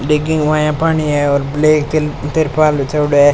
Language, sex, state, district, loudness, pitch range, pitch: Rajasthani, male, Rajasthan, Churu, -14 LUFS, 145-155 Hz, 150 Hz